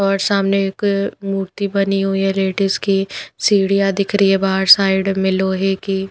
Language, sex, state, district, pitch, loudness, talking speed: Hindi, female, Punjab, Pathankot, 195 Hz, -16 LUFS, 185 wpm